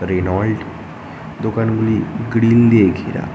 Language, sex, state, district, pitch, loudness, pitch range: Bengali, male, West Bengal, North 24 Parganas, 110 Hz, -16 LUFS, 95-115 Hz